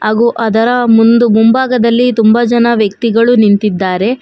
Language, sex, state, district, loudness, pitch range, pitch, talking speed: Kannada, female, Karnataka, Bangalore, -10 LUFS, 220-235 Hz, 230 Hz, 115 wpm